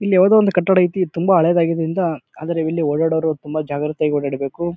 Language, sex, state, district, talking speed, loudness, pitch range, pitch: Kannada, male, Karnataka, Bijapur, 175 wpm, -18 LUFS, 155-180 Hz, 165 Hz